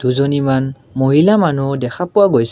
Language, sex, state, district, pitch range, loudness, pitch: Assamese, male, Assam, Kamrup Metropolitan, 130-155 Hz, -15 LUFS, 135 Hz